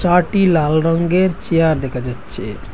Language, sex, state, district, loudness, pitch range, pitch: Bengali, male, Assam, Hailakandi, -16 LUFS, 155-180 Hz, 165 Hz